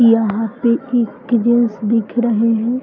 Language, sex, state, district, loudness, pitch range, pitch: Hindi, female, Bihar, Araria, -16 LUFS, 225-240 Hz, 230 Hz